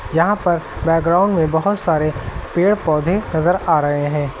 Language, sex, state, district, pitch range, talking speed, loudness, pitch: Hindi, male, Uttar Pradesh, Lucknow, 150-180 Hz, 165 wpm, -17 LUFS, 165 Hz